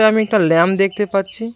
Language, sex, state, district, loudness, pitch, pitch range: Bengali, male, West Bengal, Cooch Behar, -16 LUFS, 205 Hz, 190-220 Hz